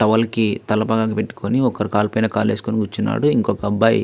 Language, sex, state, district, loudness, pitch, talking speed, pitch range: Telugu, male, Andhra Pradesh, Visakhapatnam, -19 LUFS, 110 Hz, 180 wpm, 105-110 Hz